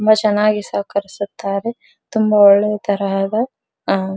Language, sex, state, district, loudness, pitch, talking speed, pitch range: Kannada, female, Karnataka, Dharwad, -17 LUFS, 205 Hz, 85 wpm, 200-215 Hz